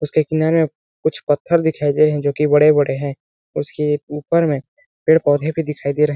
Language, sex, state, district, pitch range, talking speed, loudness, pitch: Hindi, male, Chhattisgarh, Balrampur, 145-160 Hz, 215 wpm, -18 LUFS, 150 Hz